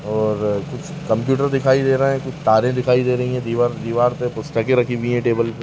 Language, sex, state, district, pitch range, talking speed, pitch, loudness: Kumaoni, male, Uttarakhand, Tehri Garhwal, 115-130 Hz, 235 wpm, 125 Hz, -19 LUFS